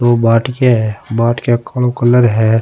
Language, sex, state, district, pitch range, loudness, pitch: Rajasthani, male, Rajasthan, Nagaur, 115-120 Hz, -13 LUFS, 120 Hz